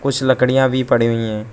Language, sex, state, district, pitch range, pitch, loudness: Hindi, male, Arunachal Pradesh, Lower Dibang Valley, 115-130 Hz, 130 Hz, -16 LUFS